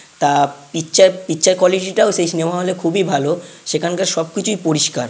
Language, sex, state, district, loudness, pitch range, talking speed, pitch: Bengali, male, West Bengal, North 24 Parganas, -16 LUFS, 160-185 Hz, 165 wpm, 170 Hz